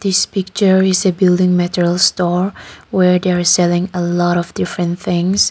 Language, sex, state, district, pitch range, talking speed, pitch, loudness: English, female, Nagaland, Kohima, 175-190 Hz, 175 wpm, 180 Hz, -15 LUFS